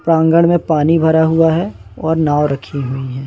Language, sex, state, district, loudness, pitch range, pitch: Hindi, male, Madhya Pradesh, Bhopal, -14 LUFS, 145-165 Hz, 160 Hz